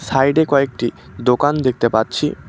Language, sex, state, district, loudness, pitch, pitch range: Bengali, male, West Bengal, Cooch Behar, -17 LUFS, 130 Hz, 120-145 Hz